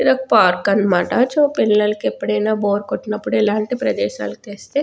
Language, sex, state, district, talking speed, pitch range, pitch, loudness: Telugu, female, Telangana, Nalgonda, 135 wpm, 200-240 Hz, 210 Hz, -17 LUFS